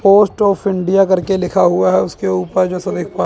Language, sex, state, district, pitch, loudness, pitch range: Hindi, male, Chandigarh, Chandigarh, 185 Hz, -15 LUFS, 175-195 Hz